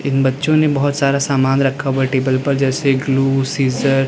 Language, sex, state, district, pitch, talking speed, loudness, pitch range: Hindi, male, Uttar Pradesh, Lalitpur, 135 Hz, 205 wpm, -16 LUFS, 135-140 Hz